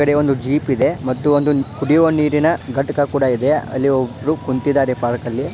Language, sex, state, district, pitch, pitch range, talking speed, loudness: Kannada, male, Karnataka, Dharwad, 140 Hz, 130-150 Hz, 175 wpm, -17 LUFS